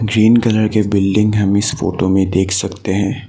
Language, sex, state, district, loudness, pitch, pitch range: Hindi, male, Assam, Sonitpur, -15 LUFS, 105 Hz, 95-110 Hz